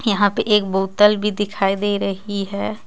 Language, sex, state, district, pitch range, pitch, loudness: Hindi, female, Jharkhand, Ranchi, 195-210 Hz, 205 Hz, -19 LUFS